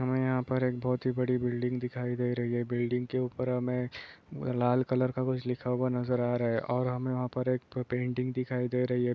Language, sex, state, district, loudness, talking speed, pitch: Hindi, male, Bihar, Darbhanga, -31 LUFS, 250 wpm, 125 Hz